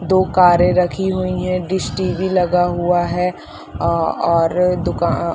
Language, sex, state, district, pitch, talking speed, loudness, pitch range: Hindi, female, Chhattisgarh, Balrampur, 180 Hz, 155 wpm, -17 LUFS, 175-185 Hz